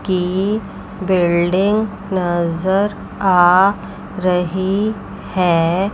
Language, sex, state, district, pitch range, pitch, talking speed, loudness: Hindi, female, Chandigarh, Chandigarh, 180-200 Hz, 185 Hz, 60 wpm, -17 LUFS